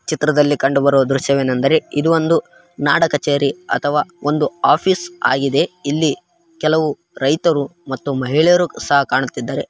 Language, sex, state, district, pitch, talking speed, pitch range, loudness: Kannada, male, Karnataka, Raichur, 150 Hz, 135 wpm, 140-165 Hz, -17 LUFS